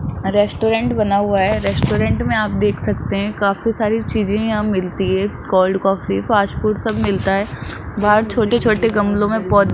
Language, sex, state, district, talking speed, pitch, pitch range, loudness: Hindi, female, Rajasthan, Jaipur, 185 wpm, 205 Hz, 195-220 Hz, -17 LUFS